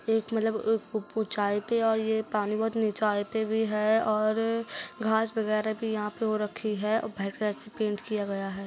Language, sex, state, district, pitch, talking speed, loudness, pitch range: Hindi, female, Maharashtra, Chandrapur, 220 Hz, 195 wpm, -29 LUFS, 210-220 Hz